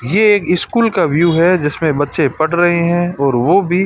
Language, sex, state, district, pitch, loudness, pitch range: Hindi, male, Rajasthan, Jaisalmer, 170 Hz, -14 LUFS, 155-180 Hz